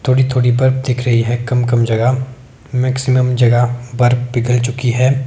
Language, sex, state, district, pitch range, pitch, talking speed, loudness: Hindi, male, Himachal Pradesh, Shimla, 120-130 Hz, 125 Hz, 170 wpm, -15 LUFS